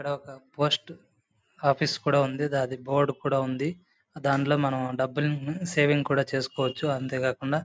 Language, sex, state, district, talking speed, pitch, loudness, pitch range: Telugu, male, Andhra Pradesh, Anantapur, 155 wpm, 140 Hz, -27 LUFS, 130-150 Hz